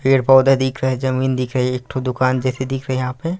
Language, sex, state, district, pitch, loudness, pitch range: Hindi, male, Chhattisgarh, Raigarh, 130 Hz, -18 LUFS, 130-135 Hz